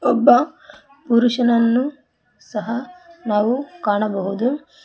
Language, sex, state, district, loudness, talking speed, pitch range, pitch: Kannada, female, Karnataka, Koppal, -19 LUFS, 60 wpm, 220-285 Hz, 245 Hz